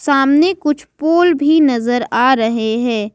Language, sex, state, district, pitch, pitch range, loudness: Hindi, female, Jharkhand, Ranchi, 270 Hz, 235-305 Hz, -14 LUFS